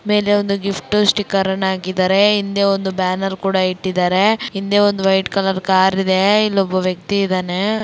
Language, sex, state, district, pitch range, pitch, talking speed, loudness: Kannada, female, Karnataka, Dakshina Kannada, 190-205 Hz, 195 Hz, 145 wpm, -16 LUFS